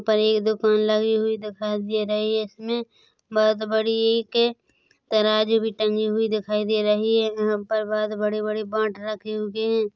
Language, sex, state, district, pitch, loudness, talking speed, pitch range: Hindi, female, Chhattisgarh, Korba, 215 Hz, -23 LUFS, 180 wpm, 215-220 Hz